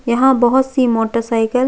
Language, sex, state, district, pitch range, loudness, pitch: Hindi, female, Chhattisgarh, Jashpur, 230-260 Hz, -15 LUFS, 245 Hz